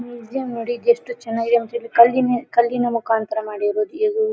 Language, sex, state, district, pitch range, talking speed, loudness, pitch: Kannada, female, Karnataka, Dharwad, 230-245 Hz, 150 wpm, -20 LUFS, 235 Hz